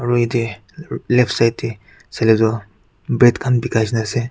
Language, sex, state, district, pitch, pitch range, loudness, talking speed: Nagamese, male, Nagaland, Kohima, 115 Hz, 110-120 Hz, -17 LUFS, 165 wpm